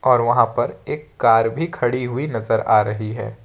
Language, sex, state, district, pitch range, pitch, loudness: Hindi, male, Jharkhand, Ranchi, 115-125 Hz, 120 Hz, -19 LUFS